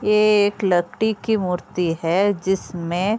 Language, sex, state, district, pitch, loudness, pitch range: Hindi, female, Uttar Pradesh, Budaun, 195 Hz, -20 LUFS, 175-210 Hz